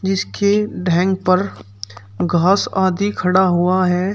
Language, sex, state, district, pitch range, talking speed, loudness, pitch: Hindi, male, Uttar Pradesh, Shamli, 175-195 Hz, 115 wpm, -17 LUFS, 185 Hz